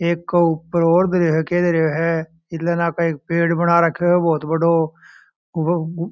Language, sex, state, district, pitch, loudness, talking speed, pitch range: Marwari, male, Rajasthan, Churu, 170 Hz, -18 LUFS, 120 wpm, 165-170 Hz